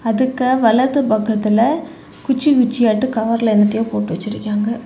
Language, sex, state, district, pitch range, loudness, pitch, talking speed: Tamil, female, Tamil Nadu, Kanyakumari, 215-255 Hz, -16 LUFS, 225 Hz, 110 wpm